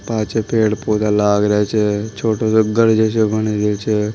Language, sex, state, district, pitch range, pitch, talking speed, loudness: Marwari, male, Rajasthan, Nagaur, 105-110 Hz, 110 Hz, 190 wpm, -16 LUFS